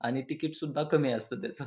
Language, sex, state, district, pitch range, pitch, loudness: Marathi, male, Maharashtra, Pune, 135-155 Hz, 150 Hz, -31 LUFS